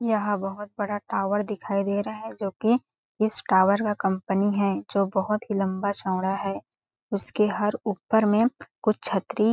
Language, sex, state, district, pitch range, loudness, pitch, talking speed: Hindi, female, Chhattisgarh, Balrampur, 195-215 Hz, -26 LUFS, 205 Hz, 170 wpm